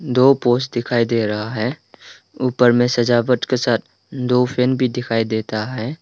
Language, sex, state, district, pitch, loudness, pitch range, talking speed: Hindi, male, Arunachal Pradesh, Lower Dibang Valley, 120 Hz, -18 LUFS, 115-125 Hz, 170 wpm